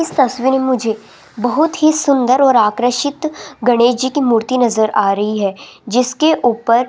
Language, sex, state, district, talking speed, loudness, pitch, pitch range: Hindi, female, Rajasthan, Jaipur, 175 wpm, -14 LUFS, 250 Hz, 225-275 Hz